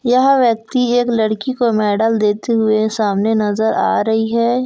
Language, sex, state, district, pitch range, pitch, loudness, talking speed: Hindi, female, Chhattisgarh, Kabirdham, 215-245 Hz, 225 Hz, -15 LUFS, 165 wpm